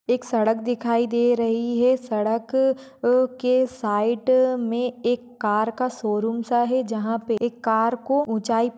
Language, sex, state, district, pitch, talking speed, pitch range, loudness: Hindi, female, Maharashtra, Sindhudurg, 240 Hz, 155 wpm, 225-250 Hz, -22 LUFS